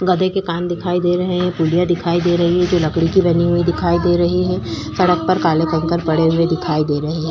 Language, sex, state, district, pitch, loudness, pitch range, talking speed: Hindi, female, Uttarakhand, Tehri Garhwal, 175 Hz, -17 LUFS, 165-180 Hz, 245 wpm